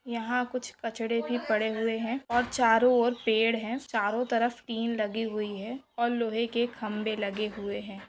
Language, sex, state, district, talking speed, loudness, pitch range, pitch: Hindi, female, Jharkhand, Jamtara, 185 wpm, -29 LUFS, 220-240 Hz, 230 Hz